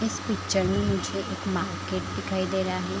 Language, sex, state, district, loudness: Hindi, female, Chhattisgarh, Raigarh, -28 LUFS